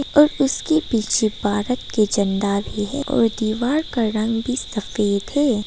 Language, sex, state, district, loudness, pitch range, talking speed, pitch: Hindi, female, Arunachal Pradesh, Papum Pare, -20 LUFS, 210-275 Hz, 160 wpm, 225 Hz